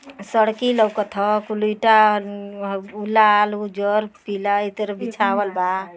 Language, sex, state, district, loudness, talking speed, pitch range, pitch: Bhojpuri, female, Uttar Pradesh, Ghazipur, -20 LUFS, 130 wpm, 200-215 Hz, 210 Hz